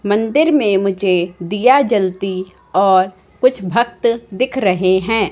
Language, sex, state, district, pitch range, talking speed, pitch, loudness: Hindi, female, Madhya Pradesh, Katni, 185-235 Hz, 125 wpm, 195 Hz, -15 LUFS